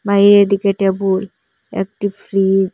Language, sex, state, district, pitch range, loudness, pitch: Bengali, female, Assam, Hailakandi, 195-200 Hz, -15 LUFS, 195 Hz